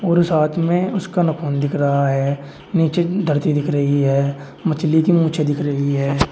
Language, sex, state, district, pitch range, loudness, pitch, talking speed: Hindi, male, Uttar Pradesh, Shamli, 140-170 Hz, -18 LUFS, 150 Hz, 190 wpm